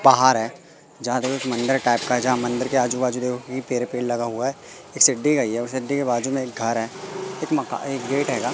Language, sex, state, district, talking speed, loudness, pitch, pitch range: Hindi, male, Madhya Pradesh, Katni, 255 wpm, -22 LUFS, 130 Hz, 120-135 Hz